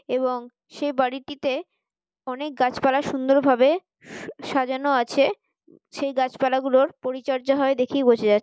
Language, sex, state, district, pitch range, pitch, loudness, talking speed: Bengali, female, West Bengal, Paschim Medinipur, 255-275 Hz, 265 Hz, -23 LUFS, 130 wpm